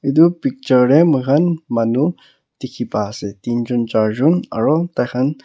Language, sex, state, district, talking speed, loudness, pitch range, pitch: Nagamese, male, Nagaland, Kohima, 175 wpm, -17 LUFS, 120-165 Hz, 135 Hz